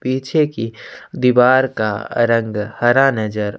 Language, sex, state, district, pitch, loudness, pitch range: Hindi, male, Chhattisgarh, Sukma, 120 Hz, -16 LUFS, 110-130 Hz